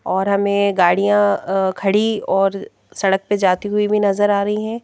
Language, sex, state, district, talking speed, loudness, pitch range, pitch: Hindi, female, Madhya Pradesh, Bhopal, 185 wpm, -17 LUFS, 195-205 Hz, 200 Hz